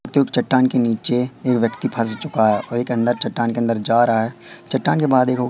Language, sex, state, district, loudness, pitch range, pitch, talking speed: Hindi, female, Madhya Pradesh, Katni, -18 LUFS, 115-125 Hz, 120 Hz, 250 wpm